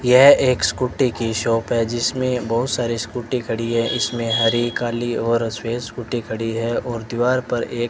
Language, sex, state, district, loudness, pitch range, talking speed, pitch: Hindi, male, Rajasthan, Bikaner, -20 LUFS, 115-125 Hz, 180 wpm, 120 Hz